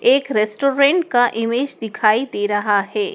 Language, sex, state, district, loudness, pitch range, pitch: Hindi, male, Madhya Pradesh, Dhar, -18 LUFS, 215-280 Hz, 245 Hz